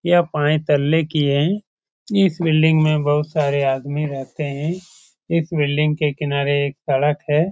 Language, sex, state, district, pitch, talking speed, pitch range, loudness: Hindi, male, Bihar, Supaul, 150 Hz, 185 wpm, 145-160 Hz, -19 LUFS